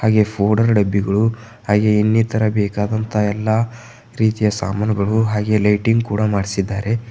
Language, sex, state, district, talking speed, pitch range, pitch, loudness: Kannada, male, Karnataka, Bidar, 110 wpm, 105-110 Hz, 110 Hz, -18 LUFS